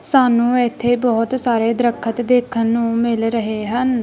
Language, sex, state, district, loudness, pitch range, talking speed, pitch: Punjabi, female, Punjab, Kapurthala, -17 LUFS, 230-245 Hz, 150 wpm, 235 Hz